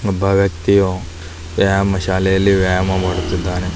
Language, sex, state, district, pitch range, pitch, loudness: Kannada, male, Karnataka, Belgaum, 90-95 Hz, 95 Hz, -16 LUFS